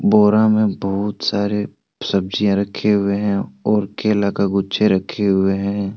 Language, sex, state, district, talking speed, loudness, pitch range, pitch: Hindi, male, Jharkhand, Deoghar, 150 wpm, -18 LUFS, 100-105 Hz, 100 Hz